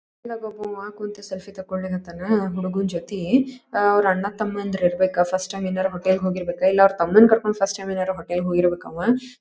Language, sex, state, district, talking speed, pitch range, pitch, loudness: Kannada, female, Karnataka, Dharwad, 185 wpm, 185-210 Hz, 195 Hz, -22 LUFS